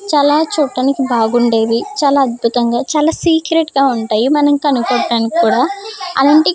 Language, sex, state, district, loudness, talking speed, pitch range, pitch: Telugu, female, Andhra Pradesh, Krishna, -13 LUFS, 130 wpm, 240-305 Hz, 275 Hz